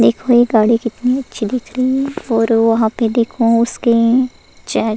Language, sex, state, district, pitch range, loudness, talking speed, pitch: Hindi, female, Goa, North and South Goa, 225-250 Hz, -15 LUFS, 180 wpm, 230 Hz